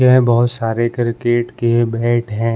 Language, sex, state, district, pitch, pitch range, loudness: Hindi, male, Uttarakhand, Uttarkashi, 120 Hz, 115-120 Hz, -16 LUFS